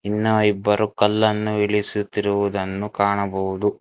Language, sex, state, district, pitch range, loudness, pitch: Kannada, male, Karnataka, Bangalore, 100-105 Hz, -21 LUFS, 105 Hz